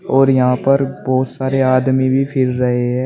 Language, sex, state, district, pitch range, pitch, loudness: Hindi, male, Uttar Pradesh, Shamli, 125-135 Hz, 130 Hz, -15 LUFS